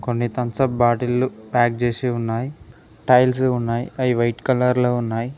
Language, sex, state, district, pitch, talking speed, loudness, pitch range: Telugu, male, Telangana, Mahabubabad, 120 Hz, 145 wpm, -20 LUFS, 120-125 Hz